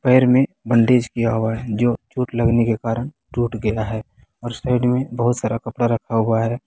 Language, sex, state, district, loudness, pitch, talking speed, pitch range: Hindi, male, Bihar, Kishanganj, -20 LUFS, 120 Hz, 205 wpm, 115-125 Hz